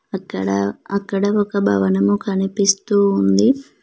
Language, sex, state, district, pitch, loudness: Telugu, female, Telangana, Mahabubabad, 195 Hz, -18 LUFS